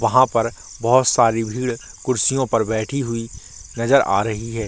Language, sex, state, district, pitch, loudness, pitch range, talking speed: Hindi, male, Bihar, Samastipur, 115 Hz, -19 LUFS, 110-130 Hz, 155 wpm